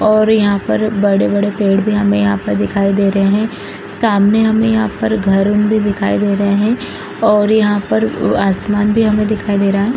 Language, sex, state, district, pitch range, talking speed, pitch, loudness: Hindi, female, Bihar, East Champaran, 200-215 Hz, 205 wpm, 205 Hz, -14 LUFS